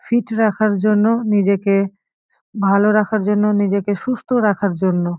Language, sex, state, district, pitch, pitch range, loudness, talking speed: Bengali, female, West Bengal, Paschim Medinipur, 205 Hz, 200-215 Hz, -17 LUFS, 125 wpm